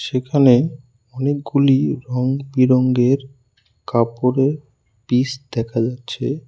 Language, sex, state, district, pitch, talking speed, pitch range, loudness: Bengali, male, West Bengal, Cooch Behar, 130 Hz, 65 wpm, 120-135 Hz, -18 LUFS